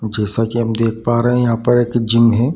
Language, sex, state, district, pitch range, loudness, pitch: Hindi, male, Bihar, Darbhanga, 115-120 Hz, -15 LUFS, 115 Hz